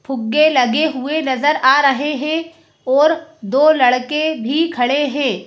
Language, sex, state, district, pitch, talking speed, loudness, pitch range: Hindi, female, Madhya Pradesh, Bhopal, 285 Hz, 145 wpm, -15 LUFS, 260-310 Hz